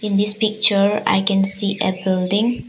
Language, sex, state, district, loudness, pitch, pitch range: English, female, Arunachal Pradesh, Papum Pare, -17 LUFS, 200 Hz, 195-210 Hz